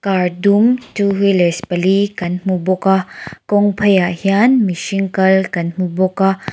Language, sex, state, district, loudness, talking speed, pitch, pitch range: Mizo, female, Mizoram, Aizawl, -15 LUFS, 165 wpm, 190 Hz, 180-200 Hz